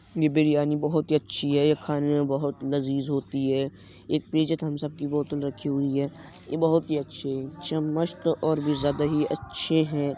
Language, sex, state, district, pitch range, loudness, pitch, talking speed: Hindi, male, Uttar Pradesh, Jyotiba Phule Nagar, 140-155 Hz, -26 LUFS, 145 Hz, 200 wpm